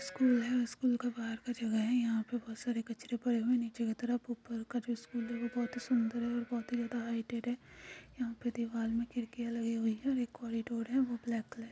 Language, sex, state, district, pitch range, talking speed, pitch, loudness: Hindi, female, Chhattisgarh, Jashpur, 230-245 Hz, 235 wpm, 235 Hz, -36 LUFS